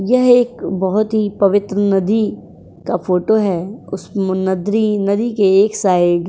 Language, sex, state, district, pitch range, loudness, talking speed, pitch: Hindi, female, Uttar Pradesh, Jyotiba Phule Nagar, 190-215 Hz, -16 LUFS, 160 wpm, 200 Hz